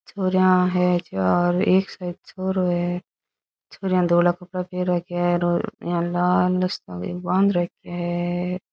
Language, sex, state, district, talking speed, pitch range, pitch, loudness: Rajasthani, female, Rajasthan, Churu, 135 wpm, 175-185 Hz, 180 Hz, -22 LUFS